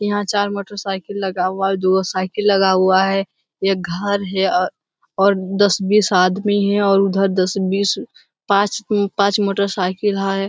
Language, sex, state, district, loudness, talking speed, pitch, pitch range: Hindi, male, Bihar, Jamui, -18 LUFS, 165 wpm, 195 Hz, 190-200 Hz